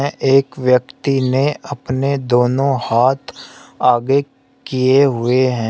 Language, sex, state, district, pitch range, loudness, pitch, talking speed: Hindi, male, Uttar Pradesh, Shamli, 125-140 Hz, -16 LUFS, 130 Hz, 105 wpm